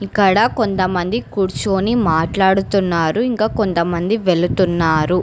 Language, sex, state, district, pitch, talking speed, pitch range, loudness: Telugu, female, Telangana, Hyderabad, 190 Hz, 80 wpm, 175-215 Hz, -17 LUFS